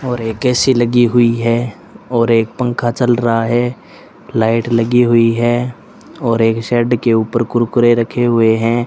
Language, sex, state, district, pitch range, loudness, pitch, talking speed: Hindi, male, Rajasthan, Bikaner, 115-120 Hz, -14 LUFS, 120 Hz, 170 wpm